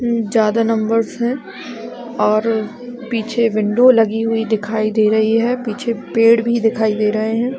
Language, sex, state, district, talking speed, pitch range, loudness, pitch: Hindi, female, Chhattisgarh, Balrampur, 150 wpm, 220-235 Hz, -16 LUFS, 225 Hz